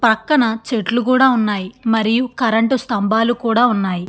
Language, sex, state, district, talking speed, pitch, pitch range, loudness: Telugu, female, Andhra Pradesh, Krishna, 130 wpm, 230 Hz, 220-245 Hz, -16 LUFS